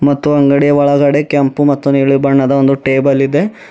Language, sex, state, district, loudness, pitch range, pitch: Kannada, male, Karnataka, Bidar, -11 LUFS, 135-145 Hz, 140 Hz